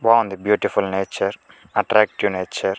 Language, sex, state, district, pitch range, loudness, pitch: Telugu, male, Andhra Pradesh, Chittoor, 95-105 Hz, -20 LUFS, 100 Hz